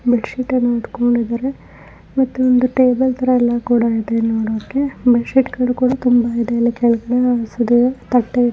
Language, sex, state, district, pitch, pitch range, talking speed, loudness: Kannada, female, Karnataka, Chamarajanagar, 245 Hz, 235-255 Hz, 145 wpm, -16 LUFS